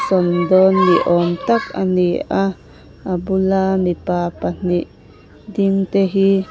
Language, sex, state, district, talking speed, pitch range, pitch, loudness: Mizo, female, Mizoram, Aizawl, 145 wpm, 175-195 Hz, 180 Hz, -17 LUFS